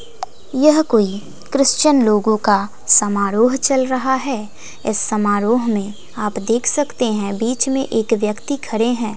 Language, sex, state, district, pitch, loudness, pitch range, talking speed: Hindi, female, Bihar, West Champaran, 225 Hz, -17 LUFS, 210-265 Hz, 145 wpm